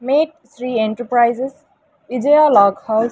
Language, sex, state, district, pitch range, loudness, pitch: Telugu, female, Andhra Pradesh, Sri Satya Sai, 225-280 Hz, -16 LUFS, 245 Hz